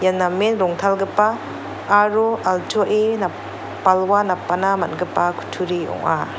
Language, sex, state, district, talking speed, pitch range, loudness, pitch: Garo, female, Meghalaya, North Garo Hills, 95 wpm, 180-210 Hz, -19 LUFS, 195 Hz